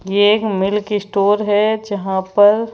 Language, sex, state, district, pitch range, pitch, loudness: Hindi, male, Madhya Pradesh, Bhopal, 195-210 Hz, 205 Hz, -16 LUFS